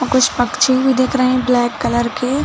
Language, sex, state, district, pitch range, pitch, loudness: Hindi, female, Chhattisgarh, Rajnandgaon, 245-255 Hz, 255 Hz, -15 LUFS